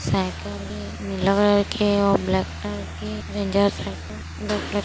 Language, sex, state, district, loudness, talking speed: Hindi, male, Chhattisgarh, Kabirdham, -23 LUFS, 175 wpm